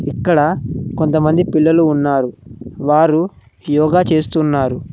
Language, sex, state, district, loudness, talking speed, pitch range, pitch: Telugu, male, Telangana, Mahabubabad, -15 LUFS, 85 wpm, 145-160 Hz, 155 Hz